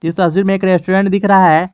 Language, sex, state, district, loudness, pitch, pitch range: Hindi, male, Jharkhand, Garhwa, -12 LUFS, 185 Hz, 175-195 Hz